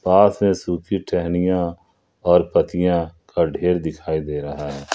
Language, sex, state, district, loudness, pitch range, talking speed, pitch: Hindi, male, Jharkhand, Ranchi, -20 LUFS, 80-90 Hz, 145 wpm, 90 Hz